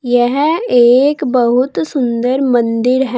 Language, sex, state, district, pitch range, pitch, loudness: Hindi, female, Uttar Pradesh, Saharanpur, 240-270 Hz, 250 Hz, -13 LUFS